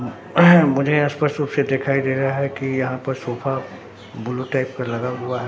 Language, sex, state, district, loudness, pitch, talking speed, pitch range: Hindi, male, Bihar, Katihar, -20 LUFS, 135 Hz, 195 wpm, 125-140 Hz